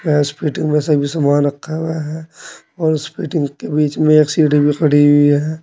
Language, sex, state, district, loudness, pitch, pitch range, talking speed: Hindi, male, Uttar Pradesh, Saharanpur, -15 LUFS, 150 Hz, 145-155 Hz, 215 wpm